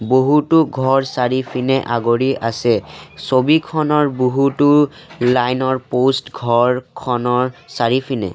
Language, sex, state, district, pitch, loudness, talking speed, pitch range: Assamese, male, Assam, Sonitpur, 130 Hz, -17 LUFS, 95 wpm, 125-140 Hz